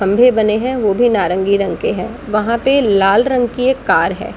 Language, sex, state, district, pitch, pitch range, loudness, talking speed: Hindi, female, Bihar, Gaya, 225 Hz, 200-250 Hz, -14 LUFS, 250 wpm